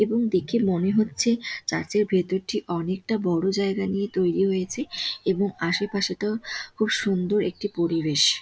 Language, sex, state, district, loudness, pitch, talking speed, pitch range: Bengali, female, West Bengal, Dakshin Dinajpur, -25 LUFS, 195 Hz, 150 wpm, 185-210 Hz